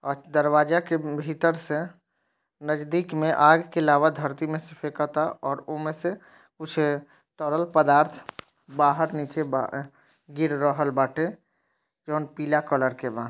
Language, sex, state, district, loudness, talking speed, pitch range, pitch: Bhojpuri, male, Bihar, East Champaran, -25 LUFS, 140 wpm, 145-160 Hz, 150 Hz